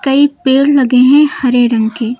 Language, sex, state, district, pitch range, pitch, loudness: Hindi, female, Uttar Pradesh, Lucknow, 245-280 Hz, 265 Hz, -10 LUFS